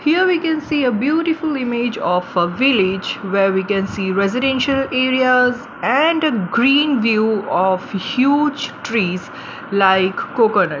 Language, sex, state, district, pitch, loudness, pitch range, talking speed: English, female, Gujarat, Valsad, 245 Hz, -17 LUFS, 195-280 Hz, 140 wpm